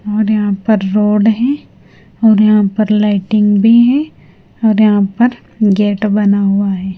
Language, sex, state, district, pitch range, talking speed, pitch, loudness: Hindi, female, Punjab, Fazilka, 200-220 Hz, 155 wpm, 210 Hz, -12 LUFS